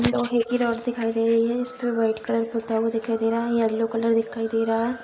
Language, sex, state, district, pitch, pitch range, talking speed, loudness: Hindi, female, Bihar, Saharsa, 230 Hz, 225-235 Hz, 240 wpm, -24 LUFS